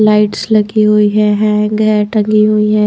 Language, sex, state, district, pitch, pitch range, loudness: Hindi, female, Maharashtra, Washim, 210 Hz, 210-215 Hz, -11 LUFS